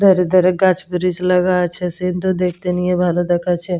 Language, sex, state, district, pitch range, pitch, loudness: Bengali, female, West Bengal, Jalpaiguri, 180-185 Hz, 180 Hz, -17 LUFS